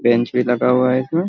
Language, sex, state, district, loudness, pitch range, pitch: Hindi, male, Bihar, Sitamarhi, -17 LUFS, 125-130 Hz, 125 Hz